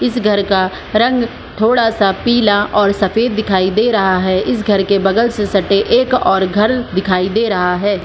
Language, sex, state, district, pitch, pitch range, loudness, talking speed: Hindi, female, Bihar, Supaul, 205 Hz, 195-230 Hz, -14 LUFS, 195 wpm